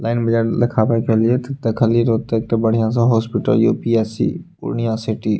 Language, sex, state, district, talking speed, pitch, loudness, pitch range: Maithili, male, Bihar, Purnia, 155 wpm, 115 Hz, -18 LUFS, 110-115 Hz